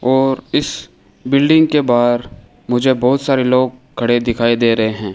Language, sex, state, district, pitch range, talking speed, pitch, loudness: Hindi, male, Rajasthan, Bikaner, 120-130 Hz, 165 wpm, 125 Hz, -15 LUFS